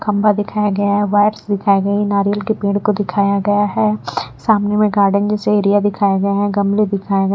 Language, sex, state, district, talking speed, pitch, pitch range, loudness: Hindi, female, Bihar, Patna, 210 wpm, 205 Hz, 200-210 Hz, -16 LUFS